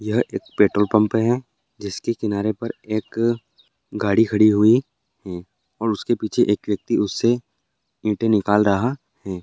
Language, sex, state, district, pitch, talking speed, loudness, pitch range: Hindi, male, Uttarakhand, Tehri Garhwal, 110 Hz, 155 wpm, -20 LUFS, 105-115 Hz